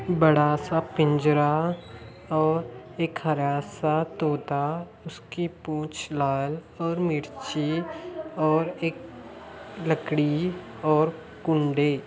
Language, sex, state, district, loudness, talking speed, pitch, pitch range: Hindi, male, Andhra Pradesh, Anantapur, -26 LUFS, 90 wpm, 155 Hz, 150-165 Hz